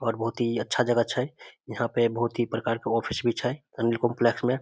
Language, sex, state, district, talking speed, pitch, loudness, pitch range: Maithili, male, Bihar, Samastipur, 260 wpm, 120 Hz, -27 LUFS, 115-125 Hz